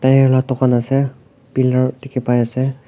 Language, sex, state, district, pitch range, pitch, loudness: Nagamese, male, Nagaland, Kohima, 125-135 Hz, 130 Hz, -17 LUFS